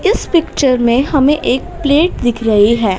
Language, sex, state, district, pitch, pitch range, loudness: Hindi, female, Haryana, Jhajjar, 265 Hz, 235-305 Hz, -13 LUFS